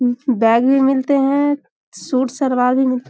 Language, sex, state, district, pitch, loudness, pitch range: Hindi, female, Bihar, Samastipur, 260 Hz, -16 LUFS, 250-275 Hz